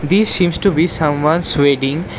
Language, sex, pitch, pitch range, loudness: English, male, 160 Hz, 145-180 Hz, -15 LUFS